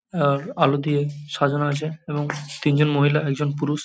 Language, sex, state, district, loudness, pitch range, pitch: Bengali, male, West Bengal, Paschim Medinipur, -22 LUFS, 145-150 Hz, 145 Hz